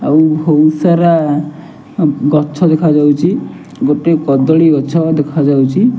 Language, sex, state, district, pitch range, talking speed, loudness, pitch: Odia, male, Odisha, Nuapada, 145-165 Hz, 90 wpm, -11 LUFS, 155 Hz